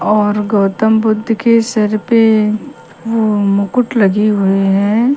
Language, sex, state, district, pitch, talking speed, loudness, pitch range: Hindi, female, Haryana, Rohtak, 215 Hz, 125 wpm, -13 LUFS, 205-225 Hz